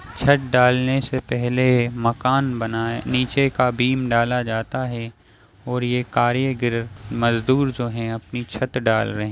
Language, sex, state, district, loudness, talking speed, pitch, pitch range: Hindi, male, Bihar, Samastipur, -21 LUFS, 150 wpm, 120 Hz, 115-130 Hz